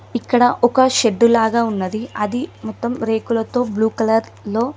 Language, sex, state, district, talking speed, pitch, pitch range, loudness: Telugu, female, Telangana, Mahabubabad, 140 wpm, 230 Hz, 220-245 Hz, -18 LUFS